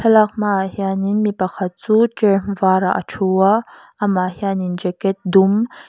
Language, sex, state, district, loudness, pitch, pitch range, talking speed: Mizo, female, Mizoram, Aizawl, -17 LUFS, 195 Hz, 190-210 Hz, 185 wpm